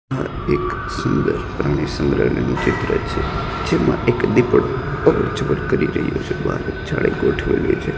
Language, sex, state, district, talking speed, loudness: Gujarati, male, Gujarat, Gandhinagar, 115 wpm, -19 LUFS